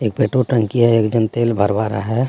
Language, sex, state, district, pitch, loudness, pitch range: Hindi, male, Jharkhand, Deoghar, 115 Hz, -17 LUFS, 110-120 Hz